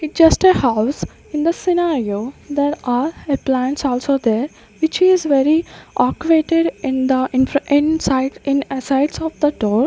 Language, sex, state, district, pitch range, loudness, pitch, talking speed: English, female, Maharashtra, Gondia, 260-320 Hz, -17 LUFS, 280 Hz, 170 wpm